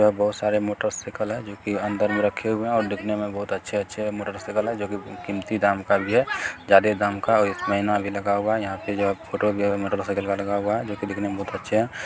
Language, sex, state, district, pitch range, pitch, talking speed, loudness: Hindi, male, Bihar, Jamui, 100-105 Hz, 105 Hz, 295 wpm, -24 LUFS